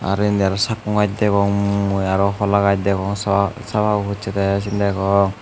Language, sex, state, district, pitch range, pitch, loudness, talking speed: Chakma, male, Tripura, Unakoti, 100-105 Hz, 100 Hz, -19 LUFS, 165 wpm